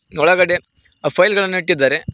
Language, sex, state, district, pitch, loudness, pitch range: Kannada, male, Karnataka, Koppal, 180 Hz, -16 LUFS, 150-185 Hz